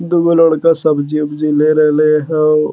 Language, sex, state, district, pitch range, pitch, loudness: Magahi, male, Bihar, Lakhisarai, 150-165 Hz, 155 Hz, -12 LUFS